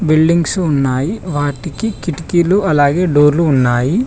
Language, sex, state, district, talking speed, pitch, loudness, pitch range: Telugu, male, Telangana, Mahabubabad, 105 wpm, 160 Hz, -14 LUFS, 145-180 Hz